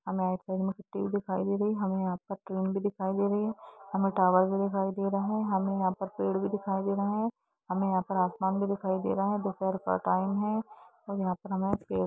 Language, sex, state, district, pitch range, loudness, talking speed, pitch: Hindi, female, Jharkhand, Jamtara, 190-200 Hz, -30 LUFS, 240 wpm, 195 Hz